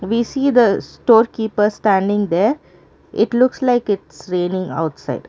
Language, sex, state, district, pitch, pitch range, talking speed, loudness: English, female, Karnataka, Bangalore, 215 Hz, 190-240 Hz, 145 wpm, -17 LUFS